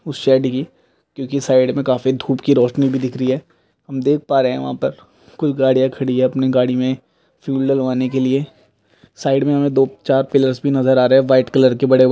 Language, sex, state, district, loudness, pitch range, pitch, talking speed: Hindi, male, Jharkhand, Jamtara, -17 LUFS, 130-135 Hz, 130 Hz, 220 wpm